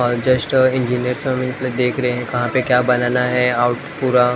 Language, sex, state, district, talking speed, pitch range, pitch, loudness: Hindi, male, Maharashtra, Mumbai Suburban, 205 wpm, 125-130 Hz, 125 Hz, -18 LUFS